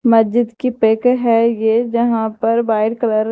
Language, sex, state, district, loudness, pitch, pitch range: Hindi, female, Madhya Pradesh, Dhar, -15 LUFS, 230 Hz, 220-235 Hz